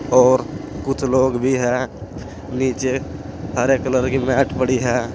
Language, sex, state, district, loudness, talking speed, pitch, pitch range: Hindi, male, Uttar Pradesh, Saharanpur, -19 LUFS, 140 wpm, 130 Hz, 125-130 Hz